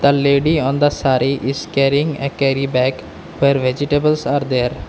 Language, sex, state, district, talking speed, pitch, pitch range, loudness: English, male, Assam, Kamrup Metropolitan, 170 wpm, 140 Hz, 135-145 Hz, -17 LUFS